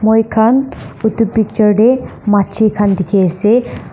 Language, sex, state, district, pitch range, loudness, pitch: Nagamese, female, Nagaland, Dimapur, 205-225 Hz, -13 LUFS, 220 Hz